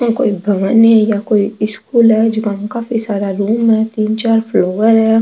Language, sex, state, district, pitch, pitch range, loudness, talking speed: Marwari, female, Rajasthan, Nagaur, 220 Hz, 210-225 Hz, -13 LUFS, 195 wpm